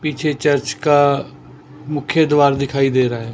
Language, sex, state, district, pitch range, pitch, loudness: Hindi, male, Chandigarh, Chandigarh, 140-150 Hz, 145 Hz, -17 LUFS